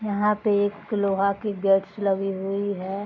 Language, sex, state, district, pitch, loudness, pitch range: Hindi, female, Bihar, Araria, 200 Hz, -24 LUFS, 195-205 Hz